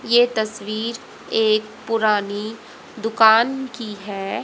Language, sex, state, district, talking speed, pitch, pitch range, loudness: Hindi, female, Haryana, Jhajjar, 95 wpm, 220 Hz, 215-225 Hz, -20 LUFS